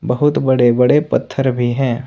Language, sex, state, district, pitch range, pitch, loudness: Hindi, male, Jharkhand, Ranchi, 125-135 Hz, 130 Hz, -15 LUFS